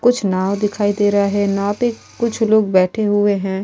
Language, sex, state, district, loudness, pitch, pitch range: Hindi, female, Uttar Pradesh, Etah, -17 LUFS, 205 Hz, 195-220 Hz